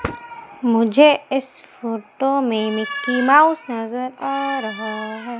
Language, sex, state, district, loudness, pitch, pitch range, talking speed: Hindi, female, Madhya Pradesh, Umaria, -19 LUFS, 250 Hz, 225-275 Hz, 110 wpm